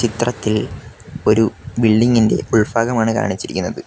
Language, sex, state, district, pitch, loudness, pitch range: Malayalam, male, Kerala, Kollam, 115 Hz, -17 LUFS, 110-120 Hz